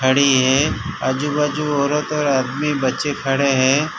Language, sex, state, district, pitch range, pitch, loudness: Hindi, male, Gujarat, Valsad, 130-150 Hz, 140 Hz, -18 LUFS